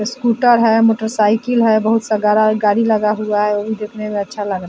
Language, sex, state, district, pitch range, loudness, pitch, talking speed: Hindi, female, Bihar, Vaishali, 210-225 Hz, -15 LUFS, 215 Hz, 230 wpm